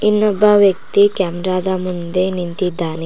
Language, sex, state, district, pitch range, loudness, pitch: Kannada, female, Karnataka, Koppal, 180-205 Hz, -16 LUFS, 185 Hz